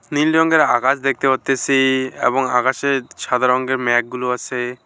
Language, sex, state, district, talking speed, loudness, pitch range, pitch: Bengali, male, West Bengal, Alipurduar, 135 wpm, -17 LUFS, 125-135 Hz, 130 Hz